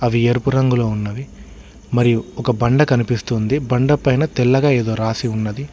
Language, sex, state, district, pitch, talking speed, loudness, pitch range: Telugu, male, Telangana, Hyderabad, 120 Hz, 145 wpm, -17 LUFS, 110-130 Hz